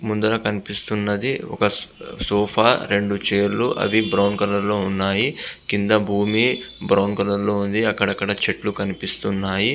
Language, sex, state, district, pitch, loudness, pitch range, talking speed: Telugu, male, Andhra Pradesh, Visakhapatnam, 100 Hz, -21 LUFS, 100-105 Hz, 125 wpm